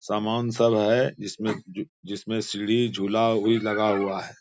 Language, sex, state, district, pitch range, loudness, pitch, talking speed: Hindi, male, Bihar, Bhagalpur, 105-115 Hz, -24 LUFS, 110 Hz, 150 wpm